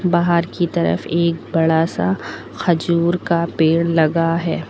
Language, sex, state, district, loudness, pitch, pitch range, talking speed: Hindi, female, Uttar Pradesh, Lucknow, -18 LUFS, 165 Hz, 160-170 Hz, 140 wpm